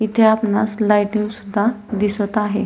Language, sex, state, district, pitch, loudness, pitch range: Marathi, female, Maharashtra, Solapur, 210 Hz, -18 LUFS, 210-220 Hz